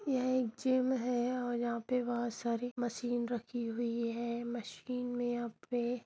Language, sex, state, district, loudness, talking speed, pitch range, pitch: Hindi, female, Bihar, Gaya, -36 LUFS, 170 wpm, 235-250 Hz, 240 Hz